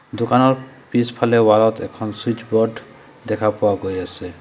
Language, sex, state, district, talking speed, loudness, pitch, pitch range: Assamese, male, Assam, Sonitpur, 135 wpm, -19 LUFS, 110 Hz, 105-120 Hz